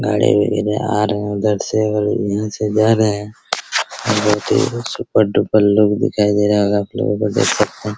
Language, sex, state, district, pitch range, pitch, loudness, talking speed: Hindi, male, Bihar, Araria, 105-110 Hz, 105 Hz, -17 LUFS, 190 wpm